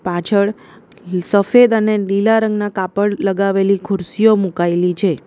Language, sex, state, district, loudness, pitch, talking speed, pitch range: Gujarati, female, Gujarat, Valsad, -15 LUFS, 200 Hz, 115 wpm, 185-210 Hz